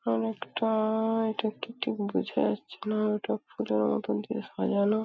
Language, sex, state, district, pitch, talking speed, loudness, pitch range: Bengali, female, West Bengal, Paschim Medinipur, 215 Hz, 140 wpm, -30 LUFS, 160-220 Hz